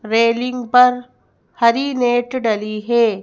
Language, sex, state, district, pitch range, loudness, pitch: Hindi, female, Madhya Pradesh, Bhopal, 230-250 Hz, -16 LUFS, 235 Hz